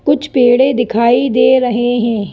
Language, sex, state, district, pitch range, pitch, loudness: Hindi, female, Madhya Pradesh, Bhopal, 235-260 Hz, 245 Hz, -12 LUFS